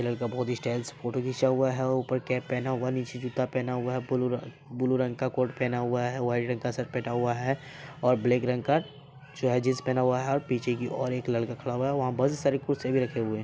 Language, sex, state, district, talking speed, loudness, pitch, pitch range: Hindi, male, Bihar, Saharsa, 275 wpm, -29 LUFS, 125 Hz, 125-130 Hz